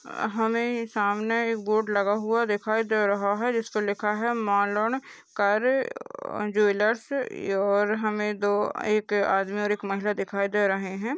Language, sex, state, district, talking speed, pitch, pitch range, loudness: Hindi, female, Maharashtra, Sindhudurg, 150 wpm, 210 Hz, 205-225 Hz, -26 LUFS